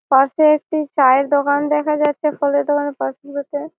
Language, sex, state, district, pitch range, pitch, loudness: Bengali, female, West Bengal, Malda, 285-300 Hz, 290 Hz, -17 LUFS